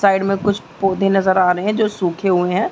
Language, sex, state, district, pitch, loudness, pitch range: Hindi, female, Chhattisgarh, Sarguja, 195 Hz, -17 LUFS, 180-195 Hz